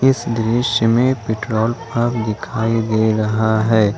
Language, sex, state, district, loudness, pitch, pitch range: Hindi, male, Jharkhand, Ranchi, -17 LUFS, 115 Hz, 110-120 Hz